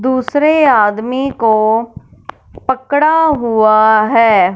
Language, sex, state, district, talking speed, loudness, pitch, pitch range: Hindi, female, Punjab, Fazilka, 80 wpm, -12 LUFS, 235 Hz, 215-275 Hz